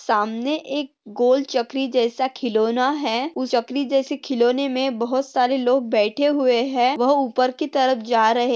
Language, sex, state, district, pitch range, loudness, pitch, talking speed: Hindi, female, Maharashtra, Pune, 240-275 Hz, -21 LUFS, 255 Hz, 170 wpm